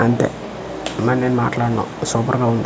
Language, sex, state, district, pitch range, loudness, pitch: Telugu, male, Andhra Pradesh, Manyam, 115-125 Hz, -20 LUFS, 120 Hz